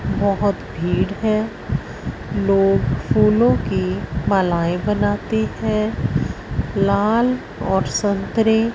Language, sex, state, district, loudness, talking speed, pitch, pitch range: Hindi, female, Punjab, Fazilka, -19 LUFS, 80 wpm, 200 Hz, 190-215 Hz